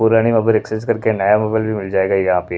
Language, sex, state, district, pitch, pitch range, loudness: Hindi, male, Punjab, Pathankot, 110 Hz, 95-110 Hz, -16 LUFS